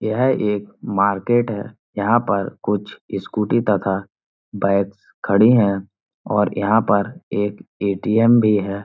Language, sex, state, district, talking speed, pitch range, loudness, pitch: Hindi, male, Uttar Pradesh, Muzaffarnagar, 130 wpm, 100-110 Hz, -19 LUFS, 100 Hz